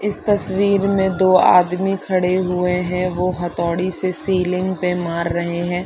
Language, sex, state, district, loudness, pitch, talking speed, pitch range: Hindi, female, Chhattisgarh, Balrampur, -18 LUFS, 180 Hz, 165 wpm, 180-190 Hz